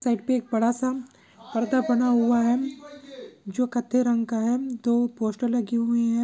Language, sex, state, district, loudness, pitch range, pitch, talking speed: Hindi, male, Maharashtra, Chandrapur, -25 LUFS, 235-250 Hz, 240 Hz, 175 wpm